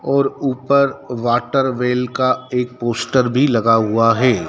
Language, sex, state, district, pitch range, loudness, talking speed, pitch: Hindi, male, Madhya Pradesh, Dhar, 120-135 Hz, -17 LUFS, 145 wpm, 125 Hz